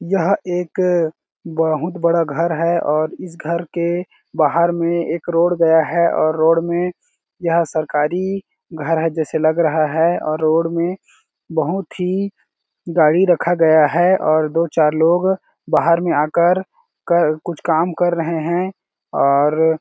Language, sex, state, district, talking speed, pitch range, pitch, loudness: Hindi, male, Chhattisgarh, Balrampur, 150 wpm, 160-175 Hz, 170 Hz, -17 LUFS